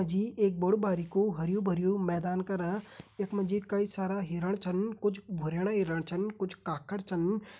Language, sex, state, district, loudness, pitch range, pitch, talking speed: Hindi, male, Uttarakhand, Uttarkashi, -32 LUFS, 180-205 Hz, 195 Hz, 190 wpm